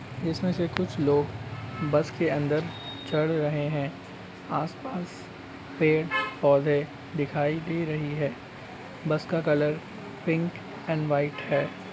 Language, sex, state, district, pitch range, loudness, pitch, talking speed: Hindi, male, Uttarakhand, Uttarkashi, 140-160 Hz, -28 LUFS, 150 Hz, 120 wpm